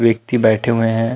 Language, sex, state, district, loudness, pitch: Chhattisgarhi, male, Chhattisgarh, Rajnandgaon, -16 LUFS, 115 Hz